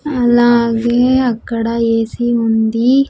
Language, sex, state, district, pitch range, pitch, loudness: Telugu, female, Andhra Pradesh, Sri Satya Sai, 230-245 Hz, 235 Hz, -14 LUFS